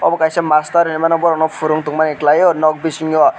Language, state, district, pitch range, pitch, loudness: Kokborok, Tripura, West Tripura, 155-165 Hz, 160 Hz, -14 LUFS